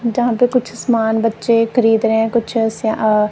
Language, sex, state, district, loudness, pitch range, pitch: Hindi, female, Punjab, Kapurthala, -16 LUFS, 225-235 Hz, 225 Hz